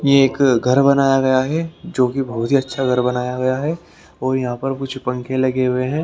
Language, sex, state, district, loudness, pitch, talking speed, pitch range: Hindi, male, Haryana, Rohtak, -18 LUFS, 130 Hz, 220 wpm, 125-140 Hz